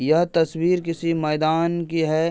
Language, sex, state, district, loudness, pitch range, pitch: Hindi, male, Uttar Pradesh, Hamirpur, -21 LUFS, 160-170 Hz, 165 Hz